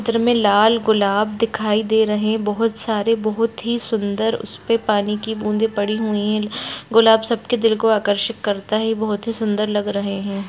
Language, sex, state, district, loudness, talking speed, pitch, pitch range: Angika, female, Bihar, Madhepura, -19 LUFS, 195 wpm, 220 Hz, 210-225 Hz